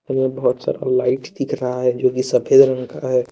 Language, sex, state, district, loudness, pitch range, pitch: Hindi, male, Jharkhand, Deoghar, -18 LUFS, 125-130 Hz, 130 Hz